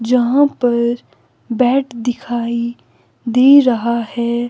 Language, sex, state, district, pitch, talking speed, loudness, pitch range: Hindi, female, Himachal Pradesh, Shimla, 240 Hz, 95 wpm, -15 LUFS, 235-250 Hz